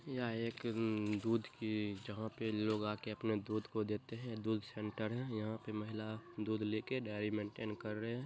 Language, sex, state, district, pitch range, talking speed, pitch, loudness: Hindi, male, Bihar, Gopalganj, 105-115 Hz, 195 wpm, 110 Hz, -41 LUFS